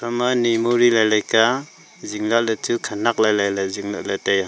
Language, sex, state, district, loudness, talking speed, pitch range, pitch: Wancho, male, Arunachal Pradesh, Longding, -19 LUFS, 240 wpm, 105-120 Hz, 110 Hz